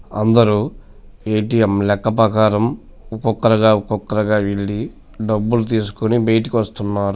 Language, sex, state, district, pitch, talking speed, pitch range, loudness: Telugu, male, Andhra Pradesh, Guntur, 110 Hz, 90 wpm, 105-115 Hz, -17 LUFS